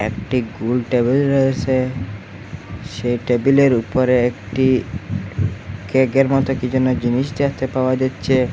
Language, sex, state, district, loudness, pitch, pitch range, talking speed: Bengali, male, Assam, Hailakandi, -18 LUFS, 125 Hz, 105-130 Hz, 115 wpm